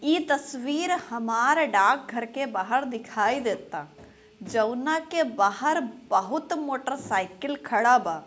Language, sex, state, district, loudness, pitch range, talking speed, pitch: Bhojpuri, female, Bihar, Gopalganj, -26 LUFS, 230-300 Hz, 125 wpm, 260 Hz